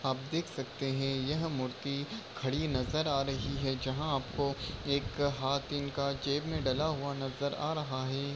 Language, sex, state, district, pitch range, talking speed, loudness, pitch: Hindi, male, Maharashtra, Solapur, 135-145 Hz, 170 wpm, -34 LUFS, 140 Hz